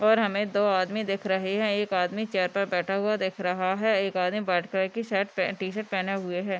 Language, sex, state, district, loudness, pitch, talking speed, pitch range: Hindi, female, Bihar, Madhepura, -27 LUFS, 195 Hz, 255 wpm, 185-205 Hz